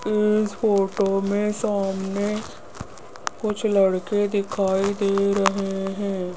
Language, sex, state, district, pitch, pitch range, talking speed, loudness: Hindi, female, Rajasthan, Jaipur, 200 Hz, 195-210 Hz, 105 wpm, -23 LUFS